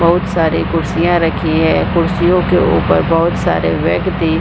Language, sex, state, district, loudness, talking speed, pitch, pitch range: Hindi, female, Bihar, Supaul, -14 LUFS, 165 wpm, 170 Hz, 165-175 Hz